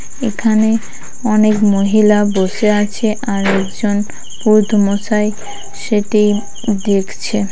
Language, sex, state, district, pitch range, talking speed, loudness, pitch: Bengali, female, West Bengal, Kolkata, 205-215 Hz, 90 wpm, -15 LUFS, 210 Hz